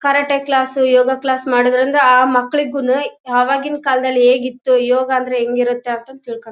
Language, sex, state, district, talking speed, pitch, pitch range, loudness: Kannada, female, Karnataka, Bellary, 140 wpm, 255 Hz, 245-270 Hz, -15 LUFS